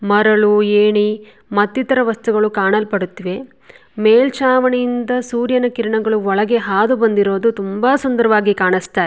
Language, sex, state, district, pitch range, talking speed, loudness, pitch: Kannada, female, Karnataka, Shimoga, 205-245 Hz, 110 wpm, -15 LUFS, 215 Hz